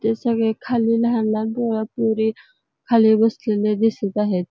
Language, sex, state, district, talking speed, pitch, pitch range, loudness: Marathi, female, Karnataka, Belgaum, 145 wpm, 225 Hz, 215-230 Hz, -20 LUFS